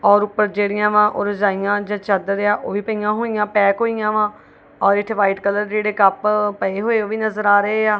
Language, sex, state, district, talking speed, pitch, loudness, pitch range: Punjabi, female, Punjab, Kapurthala, 225 wpm, 210 Hz, -18 LUFS, 205-210 Hz